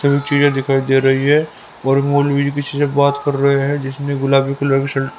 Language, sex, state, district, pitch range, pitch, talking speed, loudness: Hindi, male, Haryana, Rohtak, 135-145 Hz, 140 Hz, 220 wpm, -16 LUFS